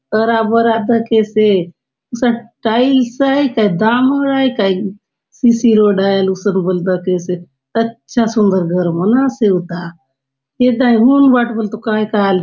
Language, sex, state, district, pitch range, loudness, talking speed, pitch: Halbi, female, Chhattisgarh, Bastar, 190-235 Hz, -14 LUFS, 170 wpm, 220 Hz